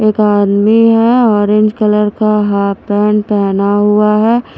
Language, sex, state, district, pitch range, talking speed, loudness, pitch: Hindi, female, Himachal Pradesh, Shimla, 205-215 Hz, 145 wpm, -11 LUFS, 210 Hz